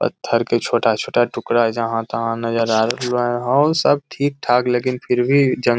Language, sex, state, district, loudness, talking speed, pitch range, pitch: Magahi, male, Bihar, Lakhisarai, -18 LUFS, 155 wpm, 115-130 Hz, 120 Hz